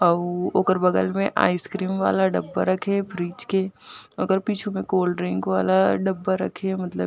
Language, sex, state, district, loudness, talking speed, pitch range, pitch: Chhattisgarhi, female, Chhattisgarh, Jashpur, -23 LUFS, 170 wpm, 115-190 Hz, 185 Hz